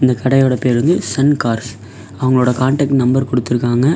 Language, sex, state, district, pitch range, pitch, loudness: Tamil, male, Tamil Nadu, Namakkal, 120-135 Hz, 125 Hz, -15 LUFS